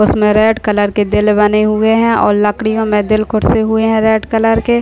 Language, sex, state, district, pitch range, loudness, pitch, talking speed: Hindi, male, Uttar Pradesh, Deoria, 210-225 Hz, -12 LUFS, 215 Hz, 225 wpm